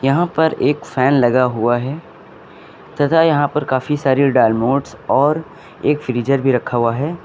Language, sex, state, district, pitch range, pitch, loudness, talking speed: Hindi, male, Uttar Pradesh, Lucknow, 130-150 Hz, 140 Hz, -16 LUFS, 165 wpm